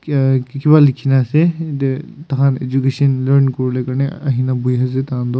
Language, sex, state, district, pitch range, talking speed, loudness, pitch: Nagamese, male, Nagaland, Kohima, 130-140 Hz, 165 wpm, -16 LUFS, 135 Hz